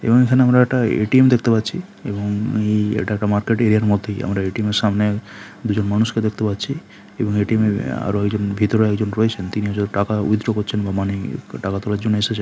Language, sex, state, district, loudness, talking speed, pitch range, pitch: Bengali, male, West Bengal, Jhargram, -19 LUFS, 210 wpm, 105-110 Hz, 105 Hz